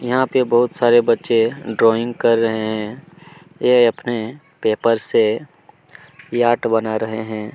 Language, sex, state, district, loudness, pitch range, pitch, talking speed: Hindi, male, Chhattisgarh, Kabirdham, -18 LUFS, 110-125 Hz, 120 Hz, 135 wpm